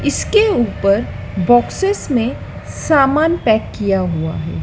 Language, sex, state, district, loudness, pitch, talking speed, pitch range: Hindi, female, Madhya Pradesh, Dhar, -16 LUFS, 240 Hz, 115 wpm, 195-315 Hz